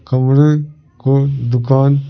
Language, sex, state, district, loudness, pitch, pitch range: Hindi, male, Bihar, Patna, -14 LUFS, 135 Hz, 130-145 Hz